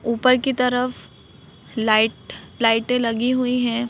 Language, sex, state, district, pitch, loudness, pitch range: Hindi, female, Madhya Pradesh, Bhopal, 245 Hz, -20 LUFS, 230-250 Hz